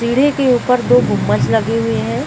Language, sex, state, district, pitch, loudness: Hindi, female, Bihar, Gaya, 235 Hz, -14 LUFS